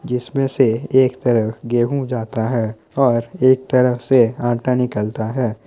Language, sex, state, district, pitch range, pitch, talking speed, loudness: Hindi, male, Bihar, Muzaffarpur, 115-130 Hz, 125 Hz, 150 wpm, -18 LUFS